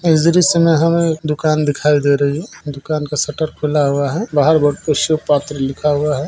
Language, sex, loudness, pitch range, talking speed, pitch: Maithili, female, -15 LUFS, 145-160 Hz, 210 wpm, 150 Hz